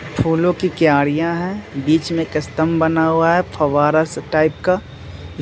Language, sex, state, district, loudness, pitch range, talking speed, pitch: Hindi, male, Bihar, Muzaffarpur, -17 LUFS, 150-165 Hz, 155 wpm, 160 Hz